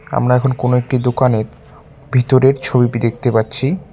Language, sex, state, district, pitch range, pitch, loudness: Bengali, male, West Bengal, Cooch Behar, 120-130 Hz, 125 Hz, -15 LUFS